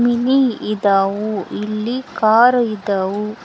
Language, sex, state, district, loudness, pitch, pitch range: Kannada, female, Karnataka, Koppal, -17 LUFS, 215 Hz, 205-240 Hz